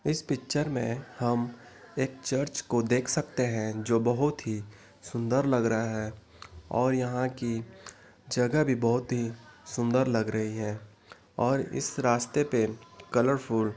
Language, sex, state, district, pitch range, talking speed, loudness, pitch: Hindi, male, Chhattisgarh, Korba, 110-130 Hz, 150 wpm, -29 LUFS, 120 Hz